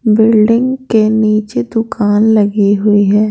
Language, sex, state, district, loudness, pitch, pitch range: Hindi, female, Bihar, Patna, -11 LUFS, 215 Hz, 210-220 Hz